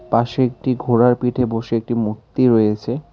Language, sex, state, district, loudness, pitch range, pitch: Bengali, male, West Bengal, Cooch Behar, -18 LUFS, 115-125 Hz, 120 Hz